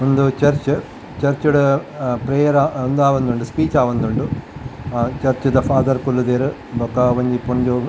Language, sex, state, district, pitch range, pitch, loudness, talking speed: Tulu, male, Karnataka, Dakshina Kannada, 125-140 Hz, 135 Hz, -18 LUFS, 130 wpm